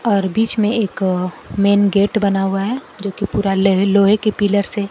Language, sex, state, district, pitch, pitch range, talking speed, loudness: Hindi, female, Bihar, Kaimur, 200 Hz, 195-210 Hz, 195 wpm, -16 LUFS